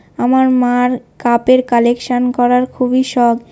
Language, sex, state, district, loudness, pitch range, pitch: Bengali, male, West Bengal, North 24 Parganas, -13 LUFS, 240-255 Hz, 250 Hz